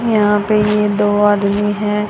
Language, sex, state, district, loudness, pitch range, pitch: Hindi, female, Haryana, Charkhi Dadri, -14 LUFS, 205-210 Hz, 210 Hz